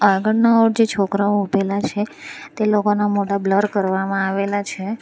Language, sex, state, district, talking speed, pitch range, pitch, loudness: Gujarati, female, Gujarat, Valsad, 155 wpm, 195-215 Hz, 205 Hz, -19 LUFS